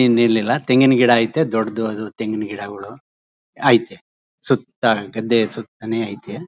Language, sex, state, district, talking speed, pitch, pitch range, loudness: Kannada, male, Karnataka, Mysore, 130 wpm, 110 Hz, 105-120 Hz, -18 LUFS